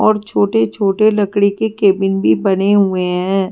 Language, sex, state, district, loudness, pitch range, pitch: Hindi, female, Delhi, New Delhi, -14 LUFS, 185-205 Hz, 195 Hz